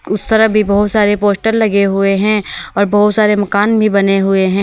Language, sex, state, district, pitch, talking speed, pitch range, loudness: Hindi, female, Uttar Pradesh, Lalitpur, 205 Hz, 220 wpm, 200-215 Hz, -12 LUFS